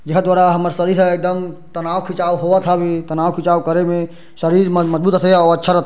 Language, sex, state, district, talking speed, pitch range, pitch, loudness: Chhattisgarhi, male, Chhattisgarh, Bilaspur, 235 wpm, 170-180 Hz, 175 Hz, -15 LUFS